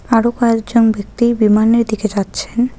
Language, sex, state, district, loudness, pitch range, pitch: Bengali, female, West Bengal, Alipurduar, -15 LUFS, 215-235 Hz, 230 Hz